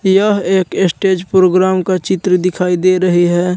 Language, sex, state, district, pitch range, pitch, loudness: Hindi, male, Jharkhand, Palamu, 180-190 Hz, 185 Hz, -13 LUFS